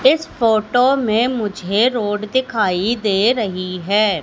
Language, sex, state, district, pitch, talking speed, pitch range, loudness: Hindi, female, Madhya Pradesh, Katni, 215 Hz, 130 wpm, 200-245 Hz, -17 LUFS